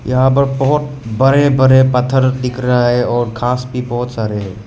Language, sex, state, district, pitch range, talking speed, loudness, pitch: Hindi, male, Meghalaya, West Garo Hills, 120-130 Hz, 195 wpm, -14 LUFS, 125 Hz